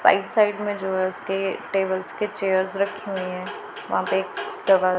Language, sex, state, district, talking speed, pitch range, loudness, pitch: Hindi, female, Punjab, Pathankot, 190 wpm, 185-205 Hz, -24 LUFS, 195 Hz